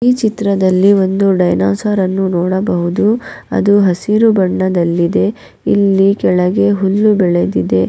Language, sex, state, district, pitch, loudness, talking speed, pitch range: Kannada, female, Karnataka, Raichur, 190 Hz, -13 LUFS, 100 wpm, 180-205 Hz